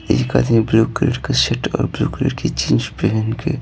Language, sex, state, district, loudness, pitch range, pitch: Hindi, male, Bihar, Patna, -18 LUFS, 110-135 Hz, 115 Hz